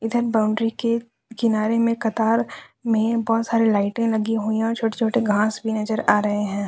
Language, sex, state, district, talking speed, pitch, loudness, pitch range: Hindi, female, Jharkhand, Deoghar, 195 wpm, 225 Hz, -21 LUFS, 215-230 Hz